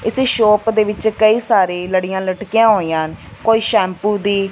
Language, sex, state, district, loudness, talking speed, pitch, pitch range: Punjabi, female, Punjab, Fazilka, -15 LUFS, 175 wpm, 210 Hz, 185-220 Hz